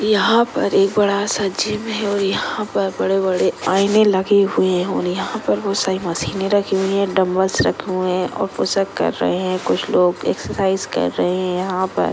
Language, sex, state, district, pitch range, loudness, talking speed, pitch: Hindi, female, Maharashtra, Dhule, 185-200 Hz, -18 LUFS, 210 wpm, 195 Hz